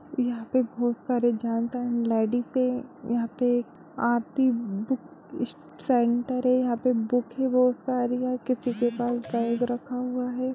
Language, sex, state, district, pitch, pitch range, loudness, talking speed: Hindi, female, Bihar, Darbhanga, 245 Hz, 235-255 Hz, -27 LUFS, 170 wpm